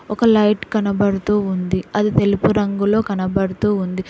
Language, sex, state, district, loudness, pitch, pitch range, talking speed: Telugu, female, Telangana, Hyderabad, -18 LUFS, 200 Hz, 190-210 Hz, 130 wpm